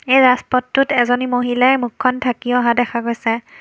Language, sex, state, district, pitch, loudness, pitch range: Assamese, female, Assam, Kamrup Metropolitan, 245 Hz, -16 LUFS, 240-255 Hz